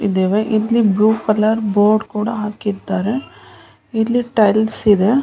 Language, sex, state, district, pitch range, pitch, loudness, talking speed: Kannada, female, Karnataka, Mysore, 205-220 Hz, 215 Hz, -16 LUFS, 125 wpm